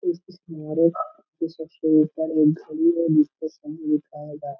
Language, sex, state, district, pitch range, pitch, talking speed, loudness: Hindi, male, Bihar, Darbhanga, 150-165 Hz, 160 Hz, 115 wpm, -23 LUFS